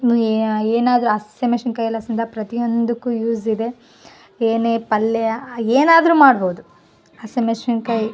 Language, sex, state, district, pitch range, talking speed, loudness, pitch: Kannada, female, Karnataka, Bellary, 225-240 Hz, 80 wpm, -18 LUFS, 230 Hz